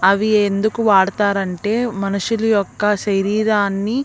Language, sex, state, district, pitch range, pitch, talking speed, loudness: Telugu, female, Andhra Pradesh, Visakhapatnam, 195-215 Hz, 205 Hz, 90 wpm, -17 LUFS